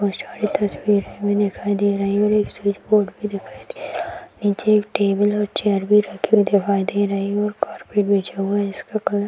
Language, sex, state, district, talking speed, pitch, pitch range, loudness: Hindi, female, Bihar, Bhagalpur, 225 wpm, 205 Hz, 200-210 Hz, -20 LUFS